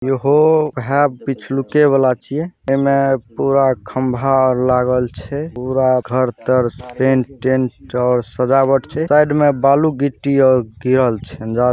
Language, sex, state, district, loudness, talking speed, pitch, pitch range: Hindi, male, Bihar, Saharsa, -16 LUFS, 145 wpm, 130 Hz, 125-140 Hz